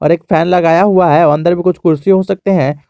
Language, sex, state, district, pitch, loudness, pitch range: Hindi, male, Jharkhand, Garhwa, 175 Hz, -11 LUFS, 160-190 Hz